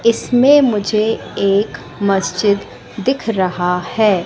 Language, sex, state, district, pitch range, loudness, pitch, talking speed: Hindi, female, Madhya Pradesh, Katni, 190-225 Hz, -16 LUFS, 205 Hz, 100 wpm